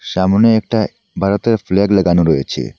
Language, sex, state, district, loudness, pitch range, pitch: Bengali, male, Assam, Hailakandi, -14 LUFS, 90-105 Hz, 100 Hz